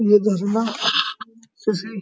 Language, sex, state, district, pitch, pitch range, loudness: Hindi, male, Uttar Pradesh, Muzaffarnagar, 215 Hz, 210-225 Hz, -21 LUFS